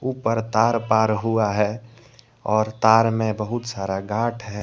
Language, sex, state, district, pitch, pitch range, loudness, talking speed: Hindi, male, Jharkhand, Deoghar, 110 Hz, 110-115 Hz, -21 LUFS, 155 wpm